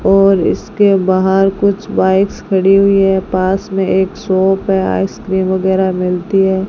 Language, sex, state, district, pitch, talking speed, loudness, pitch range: Hindi, female, Rajasthan, Bikaner, 190 Hz, 150 wpm, -13 LUFS, 190-195 Hz